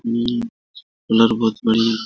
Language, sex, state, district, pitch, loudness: Hindi, male, Jharkhand, Sahebganj, 115 Hz, -18 LUFS